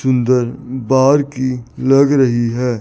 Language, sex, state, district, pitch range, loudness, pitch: Hindi, male, Chandigarh, Chandigarh, 125-135 Hz, -15 LUFS, 130 Hz